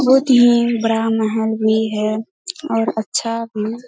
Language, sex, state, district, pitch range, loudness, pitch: Hindi, female, Bihar, Kishanganj, 220-240 Hz, -17 LUFS, 225 Hz